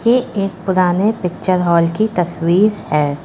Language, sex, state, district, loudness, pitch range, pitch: Hindi, female, Uttar Pradesh, Lucknow, -16 LUFS, 170-210 Hz, 185 Hz